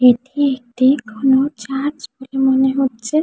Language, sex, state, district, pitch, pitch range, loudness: Bengali, female, West Bengal, Jhargram, 265 Hz, 255-275 Hz, -17 LUFS